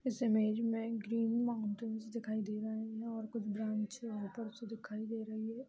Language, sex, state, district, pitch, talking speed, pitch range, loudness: Hindi, female, Bihar, Gopalganj, 225 Hz, 190 wpm, 215-230 Hz, -39 LUFS